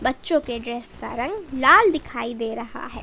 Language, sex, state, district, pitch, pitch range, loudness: Hindi, female, Jharkhand, Palamu, 260 Hz, 235-320 Hz, -21 LUFS